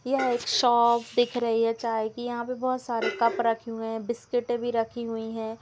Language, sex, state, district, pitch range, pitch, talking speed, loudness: Hindi, female, Bihar, Jamui, 230-245 Hz, 235 Hz, 215 wpm, -27 LUFS